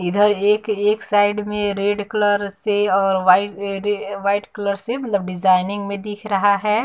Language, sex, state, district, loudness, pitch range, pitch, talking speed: Hindi, female, Bihar, West Champaran, -19 LUFS, 200-210 Hz, 205 Hz, 160 wpm